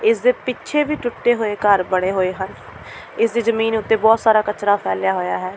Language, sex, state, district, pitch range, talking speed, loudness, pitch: Punjabi, female, Delhi, New Delhi, 190-235 Hz, 215 wpm, -18 LUFS, 220 Hz